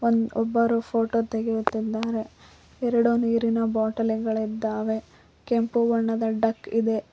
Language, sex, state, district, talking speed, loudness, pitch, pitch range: Kannada, female, Karnataka, Koppal, 85 wpm, -25 LUFS, 225 Hz, 220-230 Hz